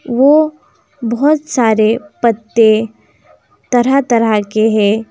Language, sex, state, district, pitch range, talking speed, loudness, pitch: Hindi, female, West Bengal, Alipurduar, 220-280 Hz, 95 wpm, -13 LUFS, 235 Hz